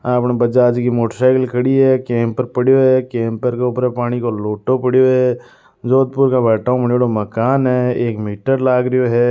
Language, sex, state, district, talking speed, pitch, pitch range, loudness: Marwari, male, Rajasthan, Nagaur, 180 wpm, 125 Hz, 120-130 Hz, -15 LUFS